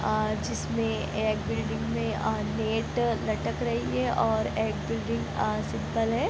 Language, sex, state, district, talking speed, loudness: Hindi, female, Bihar, East Champaran, 150 wpm, -29 LUFS